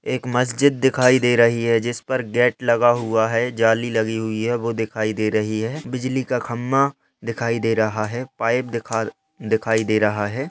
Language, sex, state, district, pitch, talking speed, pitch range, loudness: Hindi, male, Bihar, Lakhisarai, 115 Hz, 195 wpm, 110-125 Hz, -20 LUFS